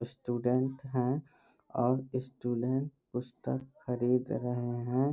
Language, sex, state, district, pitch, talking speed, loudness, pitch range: Hindi, male, Bihar, Bhagalpur, 125 Hz, 95 wpm, -34 LUFS, 125-130 Hz